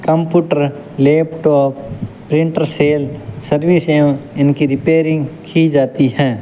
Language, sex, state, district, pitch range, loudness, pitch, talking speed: Hindi, male, Rajasthan, Bikaner, 140-160 Hz, -14 LUFS, 150 Hz, 105 wpm